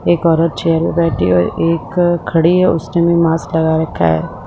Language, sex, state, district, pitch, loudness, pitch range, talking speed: Hindi, female, Jharkhand, Sahebganj, 165 Hz, -14 LUFS, 160-170 Hz, 240 wpm